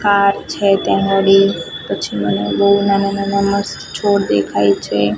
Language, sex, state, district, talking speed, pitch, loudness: Gujarati, female, Gujarat, Gandhinagar, 150 wpm, 195 Hz, -15 LUFS